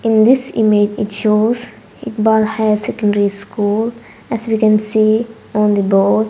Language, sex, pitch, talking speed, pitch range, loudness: English, female, 215 Hz, 150 wpm, 210-225 Hz, -15 LUFS